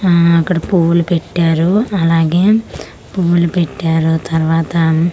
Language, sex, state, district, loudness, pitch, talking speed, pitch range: Telugu, female, Andhra Pradesh, Manyam, -13 LUFS, 170 Hz, 105 wpm, 165-175 Hz